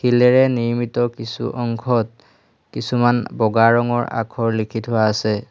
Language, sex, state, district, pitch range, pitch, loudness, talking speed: Assamese, male, Assam, Hailakandi, 115-120 Hz, 120 Hz, -19 LUFS, 120 wpm